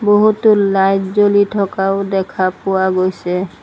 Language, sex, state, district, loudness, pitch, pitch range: Assamese, female, Assam, Sonitpur, -15 LUFS, 195 Hz, 190-205 Hz